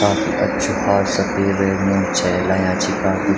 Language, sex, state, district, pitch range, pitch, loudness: Garhwali, male, Uttarakhand, Tehri Garhwal, 95-100 Hz, 95 Hz, -18 LUFS